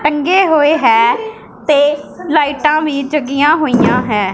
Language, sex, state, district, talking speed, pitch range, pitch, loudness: Punjabi, female, Punjab, Pathankot, 125 wpm, 285-320 Hz, 300 Hz, -12 LUFS